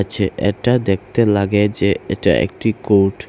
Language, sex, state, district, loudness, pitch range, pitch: Bengali, male, Assam, Hailakandi, -17 LUFS, 100-110 Hz, 100 Hz